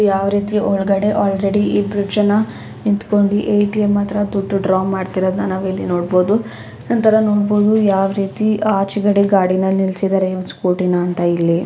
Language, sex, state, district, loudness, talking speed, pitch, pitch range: Kannada, female, Karnataka, Chamarajanagar, -16 LUFS, 135 wpm, 200 Hz, 190-205 Hz